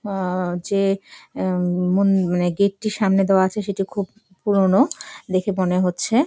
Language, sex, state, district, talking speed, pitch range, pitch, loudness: Bengali, female, West Bengal, Jalpaiguri, 135 wpm, 185-200 Hz, 195 Hz, -20 LUFS